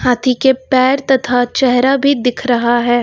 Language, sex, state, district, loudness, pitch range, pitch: Hindi, female, Uttar Pradesh, Lucknow, -13 LUFS, 245-265 Hz, 255 Hz